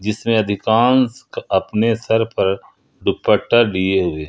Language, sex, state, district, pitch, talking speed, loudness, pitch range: Hindi, male, Jharkhand, Ranchi, 110 Hz, 110 wpm, -17 LUFS, 100-115 Hz